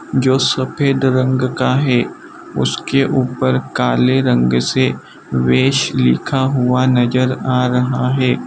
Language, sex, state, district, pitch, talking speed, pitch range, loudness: Hindi, male, Gujarat, Valsad, 130 Hz, 120 wpm, 95-130 Hz, -15 LUFS